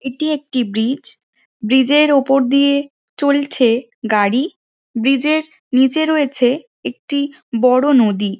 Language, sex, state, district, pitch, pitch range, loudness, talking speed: Bengali, female, West Bengal, Jhargram, 270 Hz, 245-285 Hz, -16 LUFS, 100 wpm